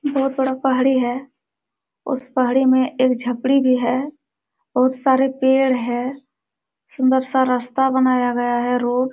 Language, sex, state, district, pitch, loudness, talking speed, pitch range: Hindi, female, Jharkhand, Sahebganj, 260 Hz, -19 LUFS, 150 wpm, 250-265 Hz